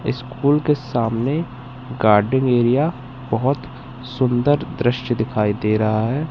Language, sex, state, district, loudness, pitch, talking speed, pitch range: Hindi, female, Madhya Pradesh, Katni, -19 LUFS, 125 Hz, 115 wpm, 115-135 Hz